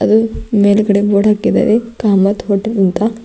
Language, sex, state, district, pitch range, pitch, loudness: Kannada, female, Karnataka, Bidar, 200-220 Hz, 210 Hz, -13 LUFS